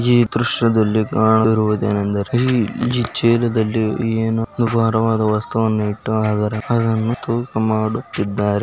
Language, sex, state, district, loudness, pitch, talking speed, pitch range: Kannada, male, Karnataka, Belgaum, -18 LUFS, 110 Hz, 95 wpm, 110-115 Hz